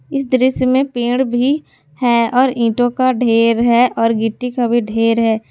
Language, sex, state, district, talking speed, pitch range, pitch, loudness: Hindi, female, Jharkhand, Garhwa, 175 wpm, 230-255 Hz, 240 Hz, -15 LUFS